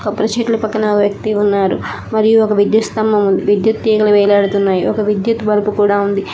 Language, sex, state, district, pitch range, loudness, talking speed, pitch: Telugu, female, Telangana, Hyderabad, 205-220 Hz, -14 LUFS, 180 wpm, 210 Hz